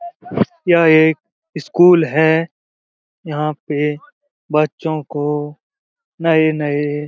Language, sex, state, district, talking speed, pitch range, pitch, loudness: Hindi, male, Bihar, Jamui, 85 wpm, 150-175 Hz, 155 Hz, -16 LUFS